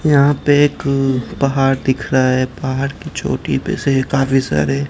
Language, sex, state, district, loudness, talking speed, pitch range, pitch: Hindi, male, Gujarat, Gandhinagar, -16 LUFS, 170 wpm, 130-140 Hz, 135 Hz